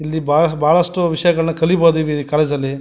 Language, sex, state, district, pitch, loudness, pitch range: Kannada, male, Karnataka, Mysore, 160 Hz, -16 LUFS, 150-165 Hz